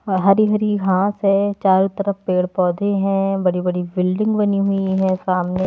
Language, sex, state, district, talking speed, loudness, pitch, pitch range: Hindi, female, Haryana, Jhajjar, 150 wpm, -18 LUFS, 195 Hz, 185-200 Hz